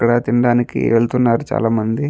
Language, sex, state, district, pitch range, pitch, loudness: Telugu, male, Andhra Pradesh, Guntur, 115-120 Hz, 120 Hz, -16 LUFS